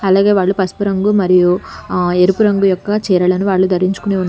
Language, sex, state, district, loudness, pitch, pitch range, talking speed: Telugu, female, Telangana, Hyderabad, -14 LUFS, 190 Hz, 185-200 Hz, 165 wpm